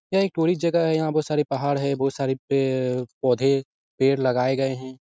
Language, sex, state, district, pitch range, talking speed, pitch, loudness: Hindi, male, Bihar, Araria, 130-155 Hz, 205 wpm, 135 Hz, -23 LUFS